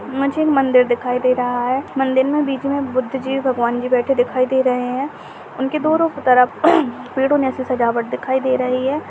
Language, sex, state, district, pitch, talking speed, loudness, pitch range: Hindi, female, Chhattisgarh, Jashpur, 260 Hz, 205 wpm, -18 LUFS, 250-275 Hz